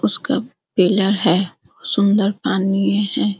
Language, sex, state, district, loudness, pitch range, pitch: Hindi, female, Bihar, Araria, -18 LUFS, 195-210 Hz, 200 Hz